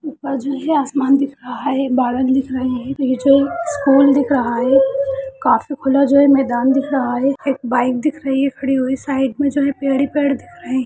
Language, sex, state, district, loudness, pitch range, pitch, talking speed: Hindi, female, Rajasthan, Churu, -17 LUFS, 260-280 Hz, 275 Hz, 240 wpm